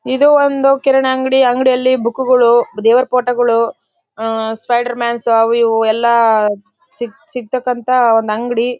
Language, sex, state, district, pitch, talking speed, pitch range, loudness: Kannada, female, Karnataka, Bellary, 240 Hz, 145 wpm, 230-255 Hz, -13 LUFS